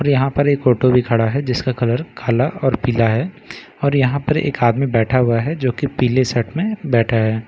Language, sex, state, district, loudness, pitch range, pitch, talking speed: Hindi, male, Bihar, Katihar, -17 LUFS, 120-140 Hz, 130 Hz, 230 wpm